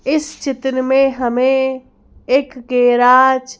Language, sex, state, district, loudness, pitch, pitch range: Hindi, female, Madhya Pradesh, Bhopal, -15 LUFS, 260 Hz, 255-270 Hz